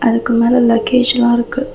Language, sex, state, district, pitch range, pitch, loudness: Tamil, female, Tamil Nadu, Chennai, 235-250 Hz, 240 Hz, -13 LUFS